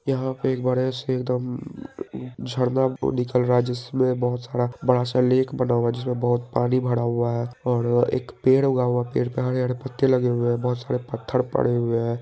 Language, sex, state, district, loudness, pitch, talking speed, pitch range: Hindi, male, Bihar, Saharsa, -23 LUFS, 125 Hz, 215 wpm, 120-130 Hz